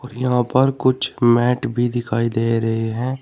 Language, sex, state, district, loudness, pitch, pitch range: Hindi, male, Uttar Pradesh, Shamli, -19 LUFS, 120 Hz, 115-130 Hz